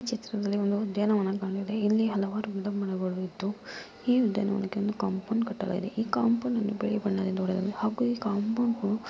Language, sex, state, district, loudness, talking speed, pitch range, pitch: Kannada, female, Karnataka, Mysore, -29 LUFS, 150 wpm, 195-220 Hz, 205 Hz